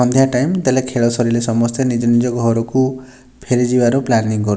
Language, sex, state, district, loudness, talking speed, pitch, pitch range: Odia, male, Odisha, Nuapada, -16 LUFS, 185 wpm, 125 Hz, 120-130 Hz